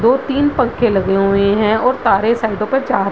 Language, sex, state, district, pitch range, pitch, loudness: Hindi, female, Bihar, Madhepura, 200-255 Hz, 225 Hz, -15 LUFS